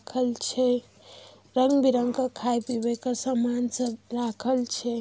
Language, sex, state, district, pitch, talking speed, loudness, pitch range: Maithili, female, Bihar, Darbhanga, 245 Hz, 120 wpm, -26 LUFS, 240-255 Hz